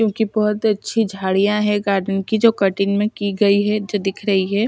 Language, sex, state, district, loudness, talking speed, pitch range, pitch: Hindi, female, Chhattisgarh, Sukma, -18 LUFS, 230 wpm, 195-215 Hz, 205 Hz